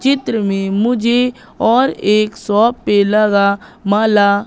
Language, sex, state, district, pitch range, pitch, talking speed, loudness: Hindi, female, Madhya Pradesh, Katni, 205-235 Hz, 215 Hz, 120 wpm, -14 LUFS